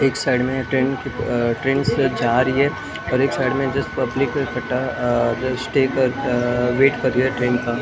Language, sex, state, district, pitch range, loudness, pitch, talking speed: Hindi, male, Maharashtra, Mumbai Suburban, 125-135 Hz, -20 LUFS, 130 Hz, 215 wpm